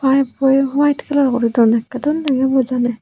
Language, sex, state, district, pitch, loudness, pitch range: Chakma, female, Tripura, Unakoti, 265 Hz, -16 LUFS, 245-275 Hz